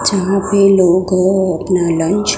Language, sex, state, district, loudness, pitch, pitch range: Hindi, female, Gujarat, Gandhinagar, -13 LUFS, 185 Hz, 180-195 Hz